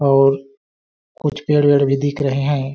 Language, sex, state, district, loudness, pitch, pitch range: Hindi, male, Chhattisgarh, Balrampur, -17 LUFS, 140 Hz, 135-145 Hz